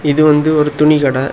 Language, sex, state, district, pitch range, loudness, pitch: Tamil, male, Tamil Nadu, Kanyakumari, 145-150 Hz, -12 LUFS, 150 Hz